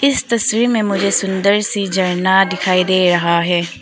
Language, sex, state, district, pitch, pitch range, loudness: Hindi, female, Arunachal Pradesh, Papum Pare, 195 Hz, 185-210 Hz, -15 LUFS